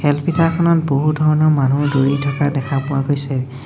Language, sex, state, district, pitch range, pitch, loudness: Assamese, male, Assam, Sonitpur, 135-155 Hz, 145 Hz, -17 LUFS